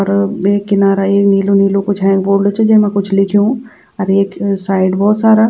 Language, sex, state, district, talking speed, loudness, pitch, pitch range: Garhwali, female, Uttarakhand, Tehri Garhwal, 205 wpm, -12 LUFS, 200 Hz, 195-205 Hz